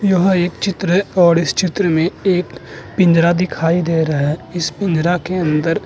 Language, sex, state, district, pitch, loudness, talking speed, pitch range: Hindi, male, Uttarakhand, Tehri Garhwal, 175 Hz, -16 LUFS, 195 wpm, 165-185 Hz